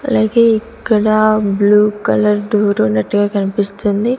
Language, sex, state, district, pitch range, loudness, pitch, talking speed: Telugu, female, Andhra Pradesh, Sri Satya Sai, 205-220 Hz, -14 LUFS, 210 Hz, 100 wpm